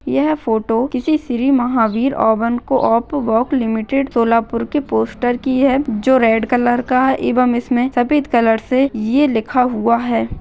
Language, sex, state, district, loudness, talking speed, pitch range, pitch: Hindi, female, Maharashtra, Solapur, -16 LUFS, 165 wpm, 230-265 Hz, 245 Hz